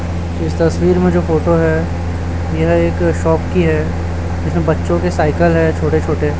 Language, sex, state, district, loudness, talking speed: Hindi, male, Chhattisgarh, Raipur, -15 LUFS, 170 wpm